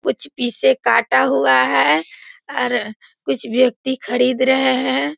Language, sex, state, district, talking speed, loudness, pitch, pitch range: Hindi, female, Bihar, Sitamarhi, 115 wpm, -17 LUFS, 245 Hz, 160-260 Hz